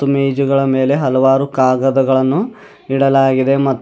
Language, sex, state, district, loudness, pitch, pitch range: Kannada, male, Karnataka, Bidar, -14 LUFS, 135 Hz, 130-140 Hz